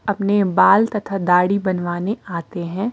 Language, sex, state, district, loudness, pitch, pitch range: Hindi, female, Himachal Pradesh, Shimla, -18 LUFS, 195 Hz, 180-205 Hz